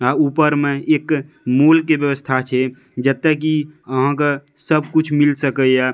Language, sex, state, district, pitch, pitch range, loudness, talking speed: Maithili, male, Bihar, Madhepura, 145 Hz, 135-155 Hz, -17 LUFS, 170 wpm